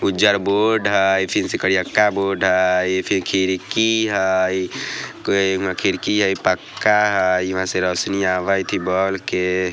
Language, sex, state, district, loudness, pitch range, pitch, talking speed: Bajjika, male, Bihar, Vaishali, -19 LUFS, 95-100 Hz, 95 Hz, 150 wpm